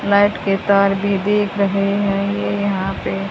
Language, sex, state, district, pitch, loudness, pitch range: Hindi, female, Haryana, Jhajjar, 200 Hz, -18 LUFS, 195-200 Hz